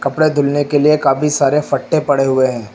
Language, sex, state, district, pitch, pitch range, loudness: Hindi, male, Uttar Pradesh, Lucknow, 145 Hz, 135-150 Hz, -14 LUFS